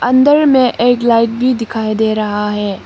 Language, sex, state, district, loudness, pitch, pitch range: Hindi, female, Arunachal Pradesh, Papum Pare, -13 LUFS, 230 Hz, 215-250 Hz